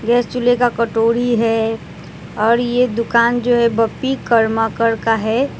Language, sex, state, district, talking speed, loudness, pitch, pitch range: Hindi, female, West Bengal, Alipurduar, 150 wpm, -16 LUFS, 230 Hz, 225-245 Hz